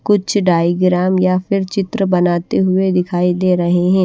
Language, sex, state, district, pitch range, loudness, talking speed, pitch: Hindi, female, Odisha, Malkangiri, 180-190 Hz, -15 LUFS, 165 wpm, 185 Hz